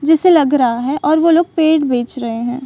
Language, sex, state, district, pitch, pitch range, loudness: Hindi, female, Bihar, Saran, 285 Hz, 250-320 Hz, -14 LUFS